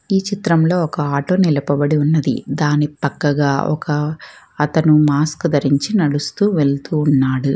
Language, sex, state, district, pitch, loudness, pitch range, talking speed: Telugu, female, Telangana, Hyderabad, 150 Hz, -17 LUFS, 145-160 Hz, 120 wpm